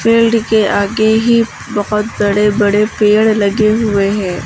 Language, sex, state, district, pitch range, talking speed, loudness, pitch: Hindi, female, Uttar Pradesh, Lucknow, 205-225 Hz, 150 wpm, -12 LUFS, 210 Hz